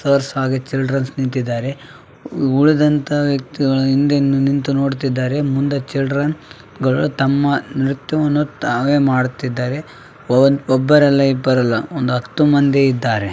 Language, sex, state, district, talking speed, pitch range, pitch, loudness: Kannada, male, Karnataka, Raichur, 105 wpm, 130-145 Hz, 135 Hz, -17 LUFS